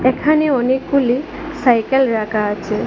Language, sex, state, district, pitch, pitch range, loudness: Bengali, female, Assam, Hailakandi, 255 Hz, 225-280 Hz, -16 LUFS